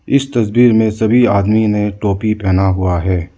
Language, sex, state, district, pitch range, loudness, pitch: Hindi, male, Arunachal Pradesh, Lower Dibang Valley, 95-110 Hz, -13 LUFS, 105 Hz